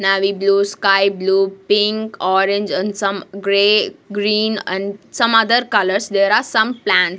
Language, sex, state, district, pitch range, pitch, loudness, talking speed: English, female, Punjab, Kapurthala, 195-210 Hz, 200 Hz, -16 LUFS, 150 wpm